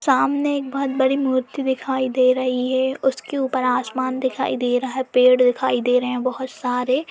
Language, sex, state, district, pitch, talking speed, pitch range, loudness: Hindi, female, Uttar Pradesh, Jalaun, 260 Hz, 195 wpm, 250-265 Hz, -20 LUFS